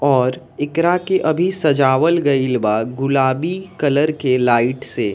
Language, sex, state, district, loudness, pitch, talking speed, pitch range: Bhojpuri, male, Bihar, East Champaran, -17 LUFS, 140 Hz, 140 wpm, 130-165 Hz